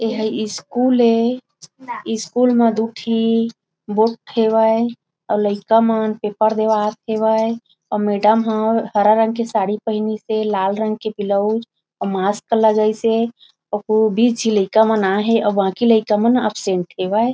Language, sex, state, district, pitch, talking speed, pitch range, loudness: Chhattisgarhi, female, Chhattisgarh, Raigarh, 220 Hz, 150 wpm, 210-225 Hz, -18 LUFS